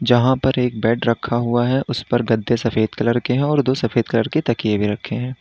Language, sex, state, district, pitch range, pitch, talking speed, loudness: Hindi, male, Uttar Pradesh, Lalitpur, 115-125 Hz, 120 Hz, 245 wpm, -19 LUFS